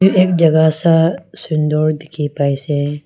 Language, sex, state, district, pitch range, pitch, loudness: Nagamese, female, Nagaland, Kohima, 150-165 Hz, 155 Hz, -15 LUFS